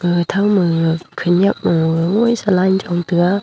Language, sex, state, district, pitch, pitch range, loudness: Wancho, female, Arunachal Pradesh, Longding, 180 Hz, 175-195 Hz, -16 LUFS